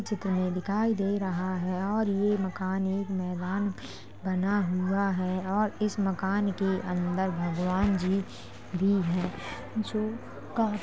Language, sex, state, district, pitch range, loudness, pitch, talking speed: Hindi, female, Uttar Pradesh, Jalaun, 185-205 Hz, -29 LUFS, 195 Hz, 130 wpm